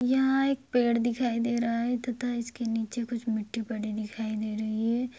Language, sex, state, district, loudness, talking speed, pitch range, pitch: Hindi, female, Bihar, Jamui, -29 LUFS, 195 wpm, 225-245 Hz, 235 Hz